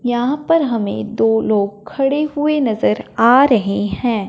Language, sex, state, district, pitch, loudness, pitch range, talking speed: Hindi, male, Punjab, Fazilka, 230 Hz, -16 LUFS, 205-275 Hz, 155 wpm